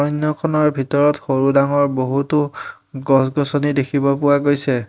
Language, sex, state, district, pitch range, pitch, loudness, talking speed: Assamese, male, Assam, Hailakandi, 135-145 Hz, 145 Hz, -17 LUFS, 125 wpm